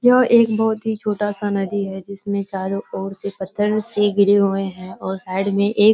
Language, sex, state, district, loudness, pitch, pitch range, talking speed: Hindi, female, Bihar, Kishanganj, -20 LUFS, 200 Hz, 195-210 Hz, 210 wpm